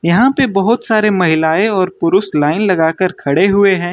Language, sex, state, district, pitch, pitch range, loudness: Hindi, male, Uttar Pradesh, Lucknow, 185 Hz, 165-210 Hz, -13 LUFS